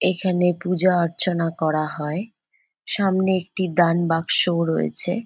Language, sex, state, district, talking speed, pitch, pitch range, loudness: Bengali, female, West Bengal, Jalpaiguri, 125 wpm, 175 Hz, 165-185 Hz, -21 LUFS